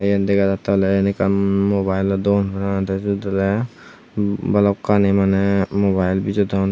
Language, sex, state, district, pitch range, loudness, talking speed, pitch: Chakma, male, Tripura, Unakoti, 95-100 Hz, -19 LUFS, 150 wpm, 100 Hz